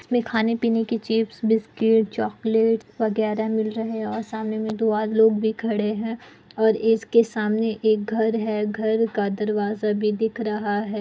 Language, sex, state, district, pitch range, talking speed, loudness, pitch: Hindi, female, Bihar, Kishanganj, 215-225 Hz, 185 wpm, -23 LUFS, 220 Hz